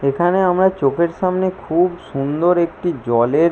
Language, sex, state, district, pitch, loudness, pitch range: Bengali, male, West Bengal, Jalpaiguri, 170 Hz, -17 LUFS, 145-180 Hz